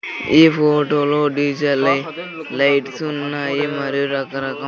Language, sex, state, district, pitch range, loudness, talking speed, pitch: Telugu, male, Andhra Pradesh, Sri Satya Sai, 140-150 Hz, -18 LUFS, 100 wpm, 145 Hz